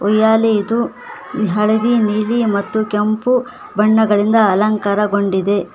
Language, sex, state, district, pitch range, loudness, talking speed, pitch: Kannada, female, Karnataka, Koppal, 205-220 Hz, -15 LUFS, 85 wpm, 215 Hz